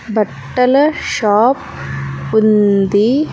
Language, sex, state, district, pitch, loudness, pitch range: Telugu, female, Andhra Pradesh, Sri Satya Sai, 210 Hz, -14 LUFS, 190-250 Hz